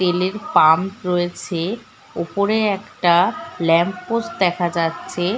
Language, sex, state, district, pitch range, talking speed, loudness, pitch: Bengali, female, West Bengal, Dakshin Dinajpur, 175-205 Hz, 110 wpm, -19 LUFS, 180 Hz